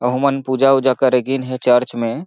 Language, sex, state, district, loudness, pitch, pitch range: Chhattisgarhi, male, Chhattisgarh, Jashpur, -16 LUFS, 130 Hz, 125-135 Hz